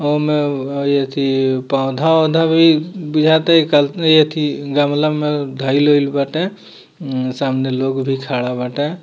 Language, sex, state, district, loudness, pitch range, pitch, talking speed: Bhojpuri, male, Bihar, Muzaffarpur, -16 LUFS, 135-155 Hz, 145 Hz, 160 wpm